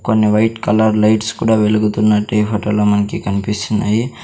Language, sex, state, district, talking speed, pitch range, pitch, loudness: Telugu, male, Andhra Pradesh, Sri Satya Sai, 140 wpm, 105-110 Hz, 105 Hz, -15 LUFS